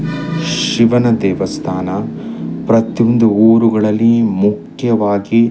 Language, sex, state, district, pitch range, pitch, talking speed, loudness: Kannada, male, Karnataka, Chamarajanagar, 105-115 Hz, 115 Hz, 65 wpm, -14 LUFS